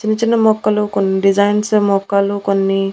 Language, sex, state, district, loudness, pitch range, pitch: Telugu, female, Andhra Pradesh, Annamaya, -15 LUFS, 195-210 Hz, 200 Hz